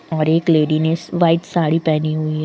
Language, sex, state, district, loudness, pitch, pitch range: Hindi, female, Uttar Pradesh, Lucknow, -17 LUFS, 160 Hz, 155-170 Hz